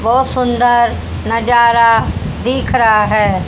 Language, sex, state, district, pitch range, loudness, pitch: Hindi, female, Haryana, Jhajjar, 225-240 Hz, -13 LUFS, 235 Hz